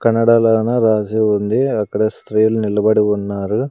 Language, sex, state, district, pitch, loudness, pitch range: Telugu, male, Andhra Pradesh, Sri Satya Sai, 110 Hz, -16 LUFS, 105-115 Hz